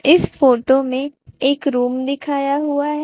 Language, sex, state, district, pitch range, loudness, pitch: Hindi, female, Chhattisgarh, Raipur, 265-290 Hz, -17 LUFS, 275 Hz